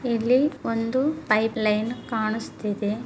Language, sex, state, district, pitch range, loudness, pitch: Kannada, female, Karnataka, Bellary, 215-250 Hz, -24 LUFS, 225 Hz